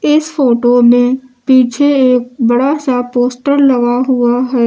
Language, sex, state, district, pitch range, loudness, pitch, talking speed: Hindi, female, Uttar Pradesh, Lucknow, 245-270 Hz, -11 LUFS, 250 Hz, 140 wpm